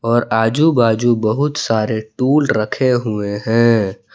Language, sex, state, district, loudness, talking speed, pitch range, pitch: Hindi, male, Jharkhand, Palamu, -16 LUFS, 130 wpm, 110-130 Hz, 115 Hz